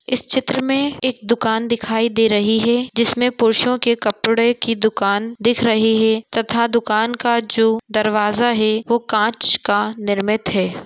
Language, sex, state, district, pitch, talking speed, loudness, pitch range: Hindi, female, Jharkhand, Sahebganj, 225 Hz, 160 wpm, -17 LUFS, 220-235 Hz